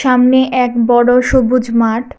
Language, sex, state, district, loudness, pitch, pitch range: Bengali, female, Tripura, West Tripura, -12 LUFS, 250 Hz, 240-255 Hz